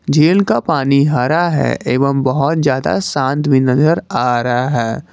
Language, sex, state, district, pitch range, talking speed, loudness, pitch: Hindi, male, Jharkhand, Garhwa, 130-155 Hz, 165 wpm, -14 LUFS, 140 Hz